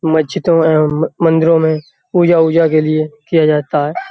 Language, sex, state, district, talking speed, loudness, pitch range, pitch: Hindi, male, Uttar Pradesh, Hamirpur, 160 wpm, -13 LUFS, 155-165 Hz, 160 Hz